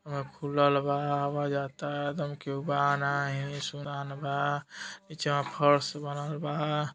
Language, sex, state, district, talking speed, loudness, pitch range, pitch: Hindi, male, Uttar Pradesh, Deoria, 130 wpm, -30 LUFS, 140-145 Hz, 145 Hz